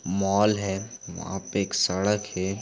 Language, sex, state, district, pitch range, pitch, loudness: Hindi, female, Chhattisgarh, Bastar, 95-105 Hz, 100 Hz, -26 LUFS